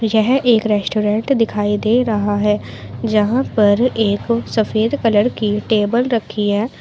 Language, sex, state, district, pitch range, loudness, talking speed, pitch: Hindi, female, Uttar Pradesh, Shamli, 210-235 Hz, -16 LUFS, 140 wpm, 220 Hz